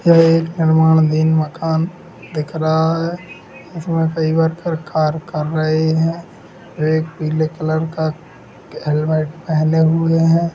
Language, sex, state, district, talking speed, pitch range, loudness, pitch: Hindi, female, Bihar, Sitamarhi, 125 wpm, 155-165 Hz, -17 LUFS, 160 Hz